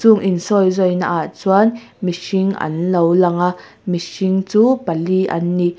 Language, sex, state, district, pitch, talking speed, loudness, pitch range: Mizo, female, Mizoram, Aizawl, 185 Hz, 145 wpm, -17 LUFS, 175-195 Hz